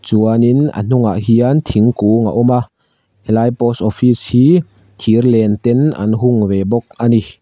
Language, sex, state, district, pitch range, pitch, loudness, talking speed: Mizo, male, Mizoram, Aizawl, 110-125 Hz, 115 Hz, -13 LUFS, 160 wpm